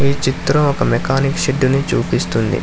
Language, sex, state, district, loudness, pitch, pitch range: Telugu, male, Telangana, Hyderabad, -16 LUFS, 140 Hz, 135-145 Hz